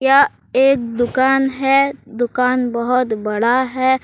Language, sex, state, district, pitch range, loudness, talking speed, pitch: Hindi, male, Jharkhand, Deoghar, 240-270 Hz, -16 LUFS, 120 wpm, 255 Hz